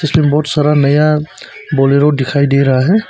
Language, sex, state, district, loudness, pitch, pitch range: Hindi, male, Arunachal Pradesh, Papum Pare, -12 LUFS, 150 Hz, 140-155 Hz